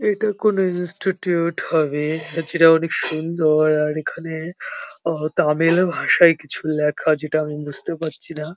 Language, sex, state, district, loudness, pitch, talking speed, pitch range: Bengali, male, West Bengal, Jhargram, -19 LUFS, 160 Hz, 135 wpm, 155-170 Hz